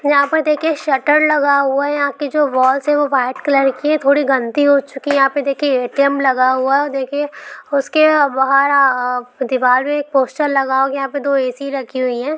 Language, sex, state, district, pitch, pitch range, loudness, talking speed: Hindi, female, Bihar, Lakhisarai, 280 Hz, 265-290 Hz, -15 LUFS, 220 wpm